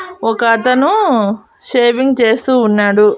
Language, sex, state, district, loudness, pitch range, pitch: Telugu, female, Andhra Pradesh, Annamaya, -12 LUFS, 220-260 Hz, 235 Hz